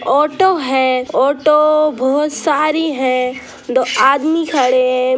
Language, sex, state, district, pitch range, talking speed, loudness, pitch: Hindi, female, Bihar, Gopalganj, 255-305 Hz, 115 wpm, -14 LUFS, 275 Hz